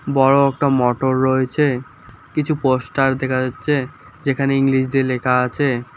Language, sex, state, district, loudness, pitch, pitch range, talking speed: Bengali, male, West Bengal, Alipurduar, -18 LUFS, 135 Hz, 130-140 Hz, 130 wpm